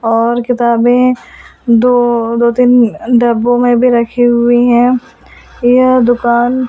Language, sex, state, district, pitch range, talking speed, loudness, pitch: Hindi, female, Delhi, New Delhi, 235-245 Hz, 105 wpm, -10 LUFS, 240 Hz